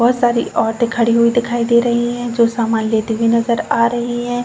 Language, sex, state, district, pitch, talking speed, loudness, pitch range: Hindi, female, Uttar Pradesh, Jalaun, 235 Hz, 230 wpm, -16 LUFS, 230-240 Hz